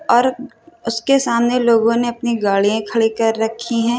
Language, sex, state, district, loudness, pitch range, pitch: Hindi, female, Uttar Pradesh, Hamirpur, -17 LUFS, 225-240 Hz, 235 Hz